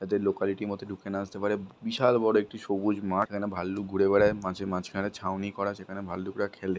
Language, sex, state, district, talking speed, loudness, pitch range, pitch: Bengali, male, West Bengal, Malda, 205 wpm, -29 LUFS, 95-105 Hz, 100 Hz